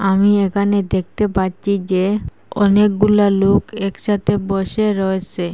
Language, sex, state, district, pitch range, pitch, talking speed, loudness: Bengali, female, Assam, Hailakandi, 190-205 Hz, 200 Hz, 110 wpm, -17 LUFS